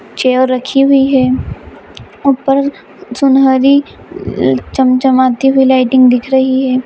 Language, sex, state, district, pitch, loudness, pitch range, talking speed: Hindi, female, Bihar, Vaishali, 260 Hz, -11 LUFS, 255-270 Hz, 105 wpm